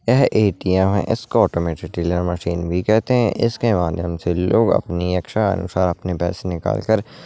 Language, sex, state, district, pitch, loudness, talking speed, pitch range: Hindi, male, Uttarakhand, Uttarkashi, 90 Hz, -19 LUFS, 155 wpm, 85-105 Hz